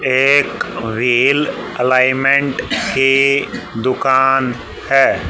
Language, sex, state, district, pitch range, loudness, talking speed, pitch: Hindi, male, Haryana, Charkhi Dadri, 125-135 Hz, -14 LUFS, 70 wpm, 135 Hz